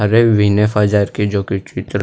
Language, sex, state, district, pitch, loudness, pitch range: Chhattisgarhi, male, Chhattisgarh, Rajnandgaon, 105 Hz, -15 LUFS, 100-105 Hz